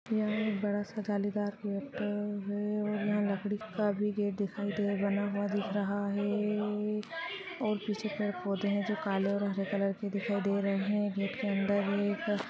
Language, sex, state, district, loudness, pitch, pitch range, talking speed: Hindi, female, Rajasthan, Churu, -33 LUFS, 205 Hz, 200-210 Hz, 180 wpm